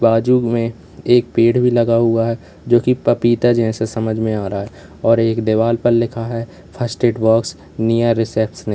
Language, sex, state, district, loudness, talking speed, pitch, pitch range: Hindi, male, Uttar Pradesh, Lalitpur, -16 LUFS, 200 wpm, 115 Hz, 110-120 Hz